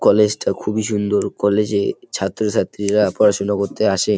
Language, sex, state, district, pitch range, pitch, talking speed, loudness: Bengali, male, West Bengal, Jalpaiguri, 100-105 Hz, 105 Hz, 145 wpm, -18 LUFS